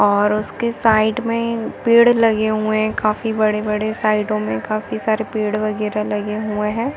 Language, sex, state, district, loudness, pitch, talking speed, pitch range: Hindi, female, Chhattisgarh, Bastar, -18 LUFS, 215 Hz, 110 wpm, 210-225 Hz